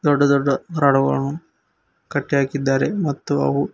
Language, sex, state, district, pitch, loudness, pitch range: Kannada, male, Karnataka, Koppal, 140 Hz, -20 LUFS, 135-145 Hz